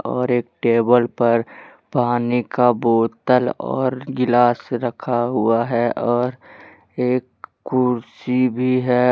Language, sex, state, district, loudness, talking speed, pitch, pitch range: Hindi, male, Jharkhand, Deoghar, -19 LUFS, 110 wpm, 125 Hz, 120-125 Hz